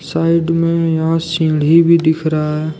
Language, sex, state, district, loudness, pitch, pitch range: Hindi, male, Jharkhand, Deoghar, -14 LUFS, 165 Hz, 160-165 Hz